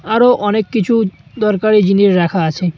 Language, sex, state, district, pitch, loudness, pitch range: Bengali, male, West Bengal, Cooch Behar, 205 Hz, -13 LUFS, 180-220 Hz